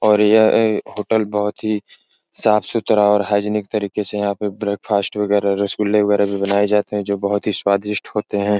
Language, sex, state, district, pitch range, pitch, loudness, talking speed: Hindi, male, Bihar, Araria, 100-105 Hz, 105 Hz, -18 LUFS, 190 wpm